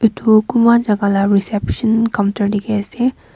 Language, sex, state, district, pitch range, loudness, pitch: Nagamese, female, Nagaland, Kohima, 205-230 Hz, -15 LUFS, 215 Hz